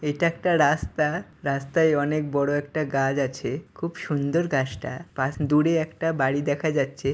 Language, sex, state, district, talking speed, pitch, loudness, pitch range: Bengali, male, West Bengal, Purulia, 150 wpm, 145 Hz, -25 LUFS, 140-160 Hz